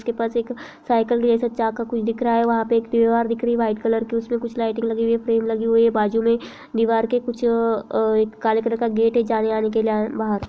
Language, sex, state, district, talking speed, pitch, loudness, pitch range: Hindi, female, Bihar, Sitamarhi, 270 wpm, 230 Hz, -21 LUFS, 225-235 Hz